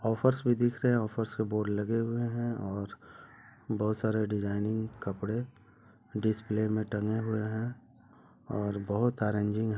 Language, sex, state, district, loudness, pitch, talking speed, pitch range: Hindi, male, Chhattisgarh, Bilaspur, -32 LUFS, 110 Hz, 140 wpm, 105-115 Hz